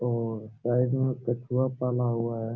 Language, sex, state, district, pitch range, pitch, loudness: Hindi, male, Jharkhand, Sahebganj, 115-125 Hz, 120 Hz, -28 LUFS